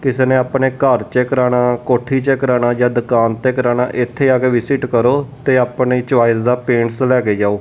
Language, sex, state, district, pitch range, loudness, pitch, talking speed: Punjabi, male, Punjab, Kapurthala, 120-130 Hz, -15 LUFS, 125 Hz, 195 wpm